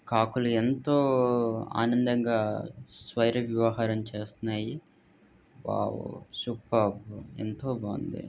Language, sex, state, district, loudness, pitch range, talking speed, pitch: Telugu, male, Andhra Pradesh, Visakhapatnam, -29 LUFS, 110-120 Hz, 70 wpm, 115 Hz